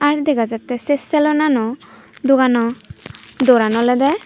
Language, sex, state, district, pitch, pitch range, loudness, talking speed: Chakma, female, Tripura, Dhalai, 260 Hz, 235-295 Hz, -16 LUFS, 100 wpm